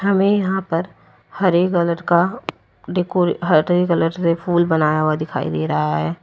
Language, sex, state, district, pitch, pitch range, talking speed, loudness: Hindi, female, Uttar Pradesh, Lalitpur, 170 Hz, 155-180 Hz, 165 wpm, -18 LUFS